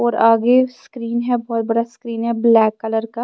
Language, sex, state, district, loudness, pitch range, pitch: Hindi, female, Bihar, Kaimur, -17 LUFS, 230-240 Hz, 235 Hz